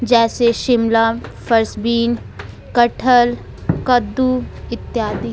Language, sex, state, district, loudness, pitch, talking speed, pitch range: Hindi, female, Jharkhand, Ranchi, -17 LUFS, 235 Hz, 80 wpm, 230-245 Hz